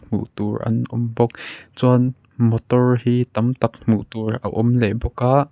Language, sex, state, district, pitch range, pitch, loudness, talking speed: Mizo, male, Mizoram, Aizawl, 110-125 Hz, 120 Hz, -20 LUFS, 185 wpm